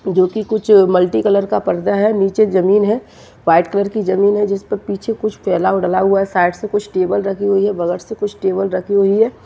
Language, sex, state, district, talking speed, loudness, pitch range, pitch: Hindi, male, Maharashtra, Dhule, 230 wpm, -15 LUFS, 190-210 Hz, 200 Hz